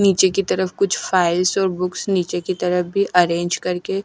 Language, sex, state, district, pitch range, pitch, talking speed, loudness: Hindi, female, Himachal Pradesh, Shimla, 180-195 Hz, 180 Hz, 190 wpm, -19 LUFS